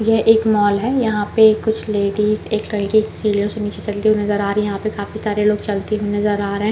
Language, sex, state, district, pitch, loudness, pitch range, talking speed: Hindi, female, Chhattisgarh, Balrampur, 210 Hz, -18 LUFS, 205-215 Hz, 265 wpm